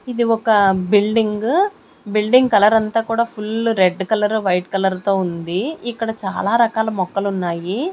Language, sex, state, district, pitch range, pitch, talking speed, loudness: Telugu, female, Andhra Pradesh, Sri Satya Sai, 190-230 Hz, 215 Hz, 130 wpm, -18 LUFS